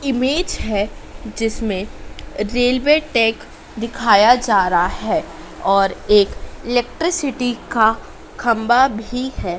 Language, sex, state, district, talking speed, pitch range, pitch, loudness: Hindi, female, Madhya Pradesh, Dhar, 100 wpm, 215-255 Hz, 235 Hz, -18 LUFS